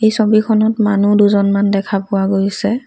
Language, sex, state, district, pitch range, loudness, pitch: Assamese, female, Assam, Kamrup Metropolitan, 200-215 Hz, -14 LUFS, 205 Hz